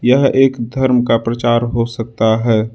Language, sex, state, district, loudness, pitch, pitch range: Hindi, male, Uttar Pradesh, Lucknow, -15 LUFS, 120 Hz, 115-125 Hz